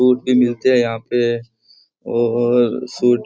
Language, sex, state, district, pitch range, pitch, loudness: Rajasthani, male, Rajasthan, Churu, 120-125 Hz, 120 Hz, -17 LUFS